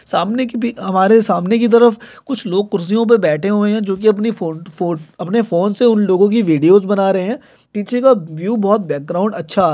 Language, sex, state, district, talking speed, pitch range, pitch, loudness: Hindi, male, Chhattisgarh, Kabirdham, 210 wpm, 185-230 Hz, 205 Hz, -15 LUFS